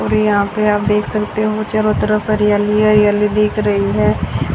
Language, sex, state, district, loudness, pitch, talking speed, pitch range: Hindi, female, Haryana, Rohtak, -15 LUFS, 210 Hz, 195 wpm, 205-215 Hz